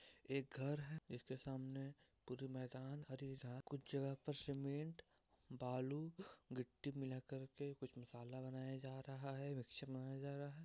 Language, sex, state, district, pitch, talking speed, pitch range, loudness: Hindi, male, Uttar Pradesh, Varanasi, 135 Hz, 145 wpm, 130-140 Hz, -50 LUFS